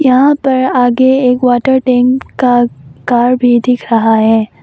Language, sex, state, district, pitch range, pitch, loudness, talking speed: Hindi, female, Arunachal Pradesh, Longding, 240-260 Hz, 250 Hz, -10 LUFS, 155 wpm